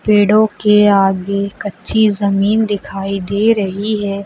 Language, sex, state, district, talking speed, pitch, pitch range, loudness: Hindi, female, Uttar Pradesh, Lucknow, 125 wpm, 205 Hz, 195-210 Hz, -14 LUFS